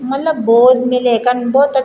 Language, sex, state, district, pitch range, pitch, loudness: Garhwali, female, Uttarakhand, Tehri Garhwal, 245-270 Hz, 250 Hz, -12 LUFS